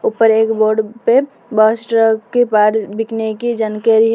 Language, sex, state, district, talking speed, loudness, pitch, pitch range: Hindi, female, Uttar Pradesh, Lalitpur, 160 wpm, -15 LUFS, 225 Hz, 220-235 Hz